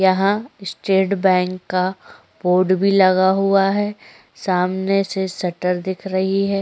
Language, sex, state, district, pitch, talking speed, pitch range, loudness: Hindi, female, Chhattisgarh, Korba, 190 Hz, 135 wpm, 185-195 Hz, -19 LUFS